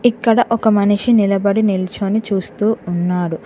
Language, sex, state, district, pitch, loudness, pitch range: Telugu, female, Telangana, Mahabubabad, 205 Hz, -16 LUFS, 190-220 Hz